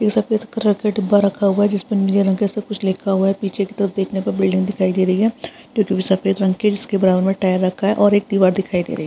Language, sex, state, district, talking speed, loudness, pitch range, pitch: Hindi, female, Uttar Pradesh, Budaun, 310 wpm, -18 LUFS, 190-205 Hz, 195 Hz